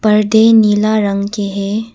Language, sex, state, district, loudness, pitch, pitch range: Hindi, female, Arunachal Pradesh, Papum Pare, -12 LUFS, 210 Hz, 200-220 Hz